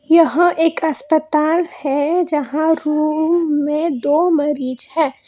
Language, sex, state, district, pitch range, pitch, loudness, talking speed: Hindi, female, Karnataka, Bangalore, 295-330 Hz, 310 Hz, -17 LUFS, 115 wpm